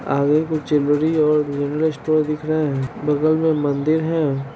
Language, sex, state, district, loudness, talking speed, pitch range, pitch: Hindi, male, Bihar, Sitamarhi, -19 LUFS, 170 wpm, 145-155 Hz, 150 Hz